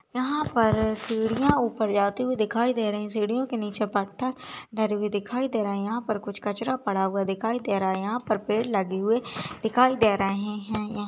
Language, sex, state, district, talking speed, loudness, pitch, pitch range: Hindi, female, Chhattisgarh, Balrampur, 210 wpm, -26 LUFS, 215 Hz, 205-235 Hz